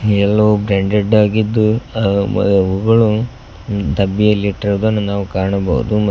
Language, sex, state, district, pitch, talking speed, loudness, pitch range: Kannada, male, Karnataka, Koppal, 105 Hz, 120 wpm, -15 LUFS, 100-110 Hz